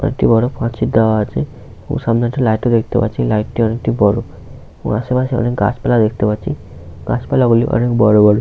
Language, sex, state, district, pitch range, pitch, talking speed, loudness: Bengali, male, West Bengal, Paschim Medinipur, 105-120 Hz, 115 Hz, 230 wpm, -15 LUFS